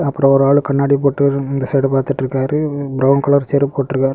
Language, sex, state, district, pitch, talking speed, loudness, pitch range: Tamil, male, Tamil Nadu, Kanyakumari, 140 Hz, 200 wpm, -15 LUFS, 135-140 Hz